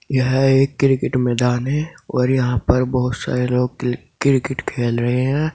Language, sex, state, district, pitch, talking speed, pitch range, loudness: Hindi, male, Uttar Pradesh, Saharanpur, 130 Hz, 160 wpm, 125-135 Hz, -19 LUFS